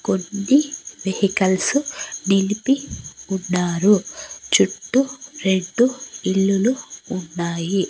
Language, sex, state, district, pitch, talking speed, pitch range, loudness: Telugu, female, Andhra Pradesh, Annamaya, 195 Hz, 60 wpm, 190-255 Hz, -20 LUFS